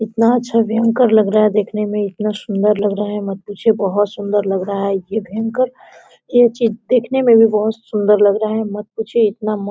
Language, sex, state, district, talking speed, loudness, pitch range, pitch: Hindi, female, Jharkhand, Sahebganj, 215 wpm, -16 LUFS, 205-225 Hz, 215 Hz